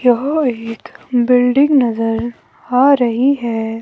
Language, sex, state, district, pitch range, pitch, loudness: Hindi, female, Himachal Pradesh, Shimla, 230-265 Hz, 245 Hz, -15 LUFS